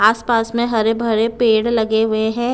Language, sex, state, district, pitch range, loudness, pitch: Hindi, female, Punjab, Kapurthala, 220-235 Hz, -17 LUFS, 225 Hz